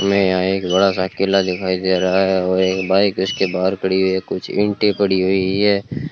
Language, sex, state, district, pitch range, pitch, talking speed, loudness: Hindi, male, Rajasthan, Bikaner, 95-100 Hz, 95 Hz, 215 wpm, -17 LUFS